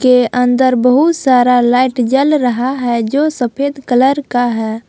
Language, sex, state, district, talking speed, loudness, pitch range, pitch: Hindi, female, Jharkhand, Palamu, 160 wpm, -13 LUFS, 245-275 Hz, 250 Hz